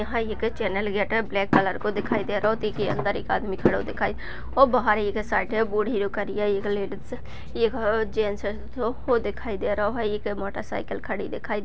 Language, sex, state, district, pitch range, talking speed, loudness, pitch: Hindi, female, Uttar Pradesh, Jyotiba Phule Nagar, 205-220 Hz, 185 wpm, -25 LUFS, 210 Hz